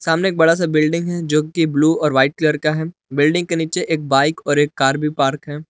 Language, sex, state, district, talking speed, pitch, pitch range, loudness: Hindi, male, Jharkhand, Palamu, 265 wpm, 155 Hz, 145-165 Hz, -17 LUFS